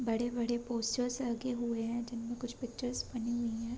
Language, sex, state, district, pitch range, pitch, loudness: Hindi, female, Chhattisgarh, Korba, 235-245 Hz, 240 Hz, -36 LUFS